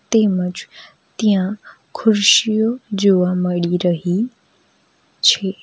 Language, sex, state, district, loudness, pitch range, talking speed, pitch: Gujarati, female, Gujarat, Valsad, -17 LUFS, 180-220 Hz, 75 wpm, 195 Hz